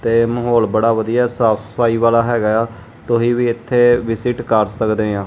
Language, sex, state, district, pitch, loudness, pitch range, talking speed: Punjabi, male, Punjab, Kapurthala, 115 Hz, -16 LUFS, 110-120 Hz, 180 wpm